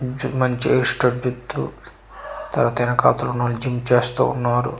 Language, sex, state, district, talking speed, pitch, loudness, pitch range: Telugu, male, Andhra Pradesh, Manyam, 100 wpm, 125 Hz, -20 LUFS, 120-125 Hz